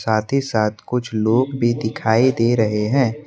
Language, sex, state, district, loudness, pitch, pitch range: Hindi, male, Assam, Kamrup Metropolitan, -19 LUFS, 115 Hz, 110-130 Hz